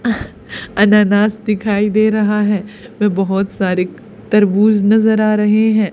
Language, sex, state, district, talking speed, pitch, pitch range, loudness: Hindi, female, Haryana, Charkhi Dadri, 130 wpm, 210 Hz, 205-215 Hz, -14 LUFS